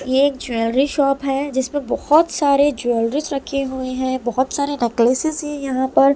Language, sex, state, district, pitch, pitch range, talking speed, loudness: Hindi, female, Delhi, New Delhi, 275 Hz, 260-285 Hz, 185 wpm, -19 LUFS